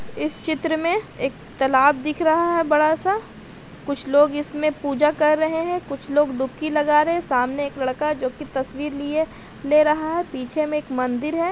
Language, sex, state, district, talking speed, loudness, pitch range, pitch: Hindi, female, Bihar, Gaya, 200 wpm, -21 LUFS, 280-315 Hz, 300 Hz